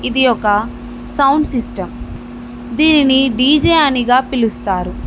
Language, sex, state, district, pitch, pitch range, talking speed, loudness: Telugu, female, Telangana, Mahabubabad, 245 Hz, 165-270 Hz, 95 wpm, -13 LUFS